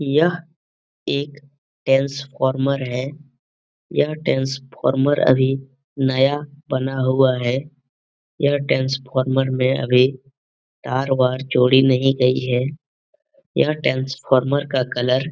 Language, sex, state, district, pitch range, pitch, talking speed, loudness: Hindi, male, Bihar, Jamui, 130-140 Hz, 135 Hz, 100 wpm, -19 LUFS